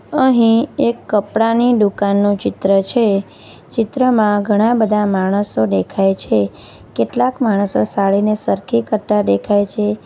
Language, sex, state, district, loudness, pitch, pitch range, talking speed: Gujarati, female, Gujarat, Valsad, -16 LUFS, 210 Hz, 195-225 Hz, 115 wpm